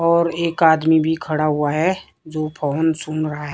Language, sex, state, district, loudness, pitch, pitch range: Hindi, female, Himachal Pradesh, Shimla, -19 LUFS, 160 Hz, 155-165 Hz